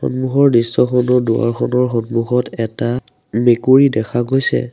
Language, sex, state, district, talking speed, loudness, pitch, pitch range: Assamese, male, Assam, Sonitpur, 100 wpm, -15 LUFS, 120 Hz, 115-130 Hz